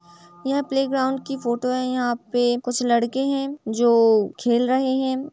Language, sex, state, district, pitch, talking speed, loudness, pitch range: Hindi, female, Uttar Pradesh, Etah, 250 Hz, 170 wpm, -22 LUFS, 235-265 Hz